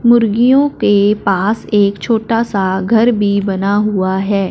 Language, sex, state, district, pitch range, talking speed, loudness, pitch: Hindi, female, Punjab, Fazilka, 195-230 Hz, 145 wpm, -13 LUFS, 205 Hz